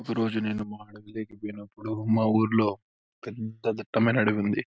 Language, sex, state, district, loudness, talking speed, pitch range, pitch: Telugu, male, Andhra Pradesh, Anantapur, -27 LUFS, 130 wpm, 105-110 Hz, 110 Hz